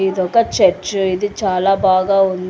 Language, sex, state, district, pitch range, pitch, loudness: Telugu, female, Telangana, Hyderabad, 185-195 Hz, 195 Hz, -15 LUFS